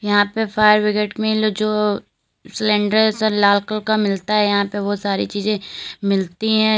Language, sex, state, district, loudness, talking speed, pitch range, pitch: Hindi, female, Uttar Pradesh, Lalitpur, -18 LUFS, 195 wpm, 205-215 Hz, 210 Hz